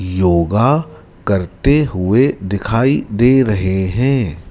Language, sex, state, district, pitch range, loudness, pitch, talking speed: Hindi, male, Madhya Pradesh, Dhar, 95-130 Hz, -15 LUFS, 105 Hz, 95 wpm